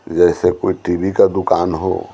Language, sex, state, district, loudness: Hindi, male, Bihar, Patna, -16 LUFS